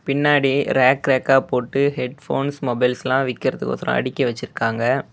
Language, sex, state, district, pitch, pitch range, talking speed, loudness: Tamil, male, Tamil Nadu, Namakkal, 135 Hz, 130-140 Hz, 105 wpm, -20 LUFS